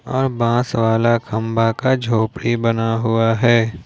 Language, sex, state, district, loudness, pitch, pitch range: Hindi, male, Jharkhand, Ranchi, -18 LUFS, 115 Hz, 115-120 Hz